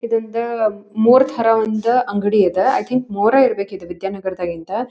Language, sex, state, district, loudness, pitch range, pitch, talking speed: Kannada, female, Karnataka, Dharwad, -17 LUFS, 195-235 Hz, 215 Hz, 145 wpm